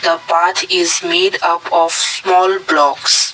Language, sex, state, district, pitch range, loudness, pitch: English, male, Assam, Kamrup Metropolitan, 165-255 Hz, -13 LUFS, 175 Hz